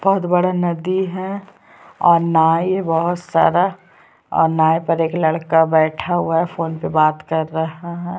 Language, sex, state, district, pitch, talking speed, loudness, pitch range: Hindi, female, Chhattisgarh, Sukma, 170 Hz, 160 wpm, -17 LUFS, 160-180 Hz